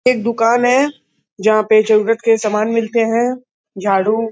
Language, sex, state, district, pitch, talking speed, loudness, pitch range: Hindi, male, Uttar Pradesh, Gorakhpur, 225 Hz, 165 wpm, -15 LUFS, 215-235 Hz